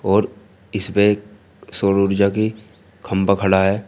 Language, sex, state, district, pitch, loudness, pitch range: Hindi, male, Uttar Pradesh, Shamli, 100 Hz, -19 LUFS, 95-105 Hz